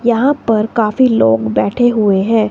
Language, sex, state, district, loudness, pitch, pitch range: Hindi, female, Himachal Pradesh, Shimla, -13 LUFS, 220 Hz, 195-240 Hz